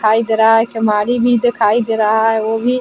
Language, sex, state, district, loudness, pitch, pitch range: Hindi, female, Bihar, Vaishali, -14 LUFS, 225 Hz, 220-235 Hz